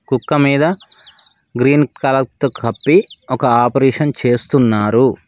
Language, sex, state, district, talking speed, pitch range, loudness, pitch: Telugu, male, Telangana, Mahabubabad, 100 wpm, 125-150 Hz, -15 LUFS, 135 Hz